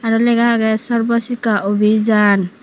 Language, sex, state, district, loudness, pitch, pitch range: Chakma, female, Tripura, Unakoti, -15 LUFS, 225 Hz, 210-235 Hz